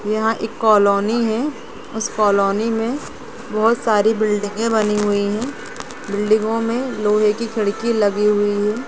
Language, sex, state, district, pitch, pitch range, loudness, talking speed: Hindi, female, Chhattisgarh, Rajnandgaon, 215 Hz, 210-225 Hz, -18 LUFS, 135 wpm